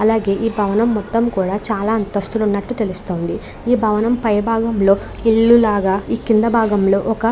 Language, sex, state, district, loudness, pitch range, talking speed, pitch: Telugu, female, Andhra Pradesh, Krishna, -17 LUFS, 200-225 Hz, 170 wpm, 220 Hz